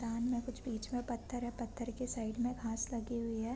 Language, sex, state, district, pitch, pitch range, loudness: Hindi, female, Chhattisgarh, Korba, 240 Hz, 230-245 Hz, -40 LUFS